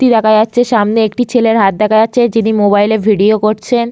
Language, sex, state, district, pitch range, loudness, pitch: Bengali, female, West Bengal, Malda, 215-235 Hz, -11 LUFS, 220 Hz